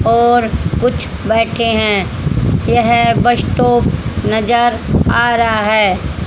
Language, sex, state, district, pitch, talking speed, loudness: Hindi, female, Haryana, Jhajjar, 225 Hz, 105 wpm, -13 LUFS